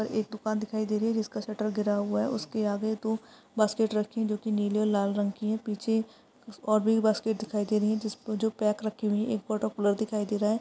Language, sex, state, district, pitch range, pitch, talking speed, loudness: Hindi, female, Uttar Pradesh, Varanasi, 210-220 Hz, 215 Hz, 260 wpm, -29 LUFS